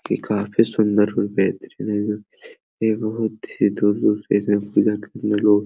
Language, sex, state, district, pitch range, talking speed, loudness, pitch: Hindi, male, Uttar Pradesh, Hamirpur, 105-110 Hz, 95 wpm, -21 LUFS, 105 Hz